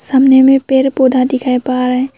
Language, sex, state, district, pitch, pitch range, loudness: Hindi, female, Arunachal Pradesh, Papum Pare, 260 Hz, 255-265 Hz, -11 LUFS